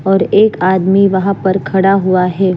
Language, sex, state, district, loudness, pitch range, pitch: Hindi, female, Maharashtra, Mumbai Suburban, -12 LUFS, 185-195 Hz, 190 Hz